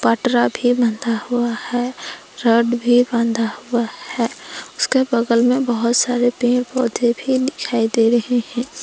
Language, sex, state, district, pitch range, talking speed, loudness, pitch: Hindi, female, Jharkhand, Palamu, 235-250 Hz, 145 wpm, -18 LUFS, 240 Hz